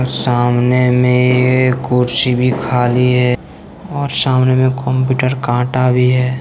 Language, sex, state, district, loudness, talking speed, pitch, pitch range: Hindi, male, Jharkhand, Deoghar, -13 LUFS, 120 wpm, 125 Hz, 125-130 Hz